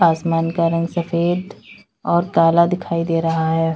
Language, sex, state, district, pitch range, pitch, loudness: Hindi, female, Uttar Pradesh, Lalitpur, 165-170 Hz, 170 Hz, -18 LUFS